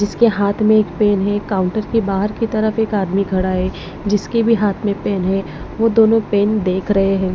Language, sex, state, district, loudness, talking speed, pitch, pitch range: Hindi, female, Punjab, Pathankot, -17 LUFS, 220 wpm, 205 Hz, 195-215 Hz